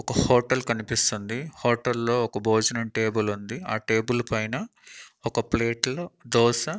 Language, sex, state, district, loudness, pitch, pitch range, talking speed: Telugu, male, Andhra Pradesh, Annamaya, -25 LUFS, 115 Hz, 110-125 Hz, 150 wpm